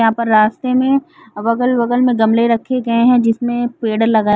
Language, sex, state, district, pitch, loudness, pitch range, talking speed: Hindi, female, Chhattisgarh, Bilaspur, 235 Hz, -15 LUFS, 225-250 Hz, 190 wpm